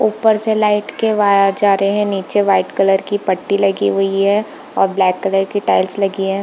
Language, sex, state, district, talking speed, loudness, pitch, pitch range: Hindi, female, Bihar, Purnia, 205 wpm, -15 LUFS, 195 Hz, 195-205 Hz